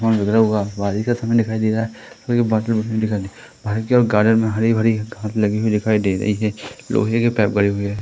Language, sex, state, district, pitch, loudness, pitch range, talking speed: Hindi, male, Madhya Pradesh, Katni, 110 Hz, -19 LUFS, 105-115 Hz, 225 wpm